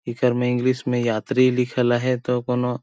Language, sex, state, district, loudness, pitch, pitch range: Sadri, male, Chhattisgarh, Jashpur, -21 LUFS, 125 Hz, 120-125 Hz